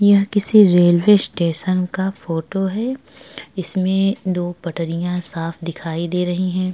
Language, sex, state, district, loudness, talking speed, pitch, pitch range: Hindi, male, Uttar Pradesh, Jyotiba Phule Nagar, -18 LUFS, 135 wpm, 185 Hz, 170-195 Hz